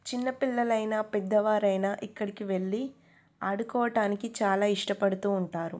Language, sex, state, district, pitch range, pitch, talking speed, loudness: Telugu, female, Telangana, Nalgonda, 200-225 Hz, 210 Hz, 105 wpm, -29 LUFS